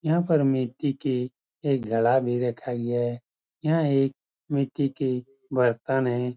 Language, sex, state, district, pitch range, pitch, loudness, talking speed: Hindi, male, Uttar Pradesh, Muzaffarnagar, 125-140 Hz, 130 Hz, -26 LUFS, 150 wpm